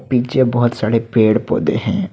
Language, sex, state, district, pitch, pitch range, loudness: Hindi, male, Assam, Hailakandi, 120 Hz, 115-130 Hz, -16 LUFS